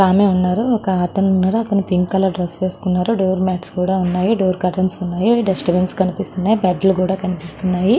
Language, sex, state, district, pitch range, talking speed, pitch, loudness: Telugu, female, Andhra Pradesh, Srikakulam, 180-195 Hz, 135 wpm, 185 Hz, -17 LUFS